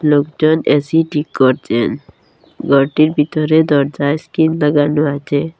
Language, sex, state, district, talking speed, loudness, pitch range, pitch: Bengali, female, Assam, Hailakandi, 105 wpm, -14 LUFS, 145-155 Hz, 150 Hz